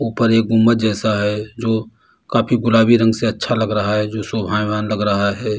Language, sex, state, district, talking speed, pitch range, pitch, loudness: Hindi, male, Uttar Pradesh, Lalitpur, 205 wpm, 105-115 Hz, 110 Hz, -17 LUFS